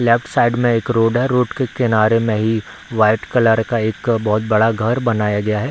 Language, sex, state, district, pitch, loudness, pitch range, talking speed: Hindi, male, Bihar, Darbhanga, 115 Hz, -17 LUFS, 110-120 Hz, 230 wpm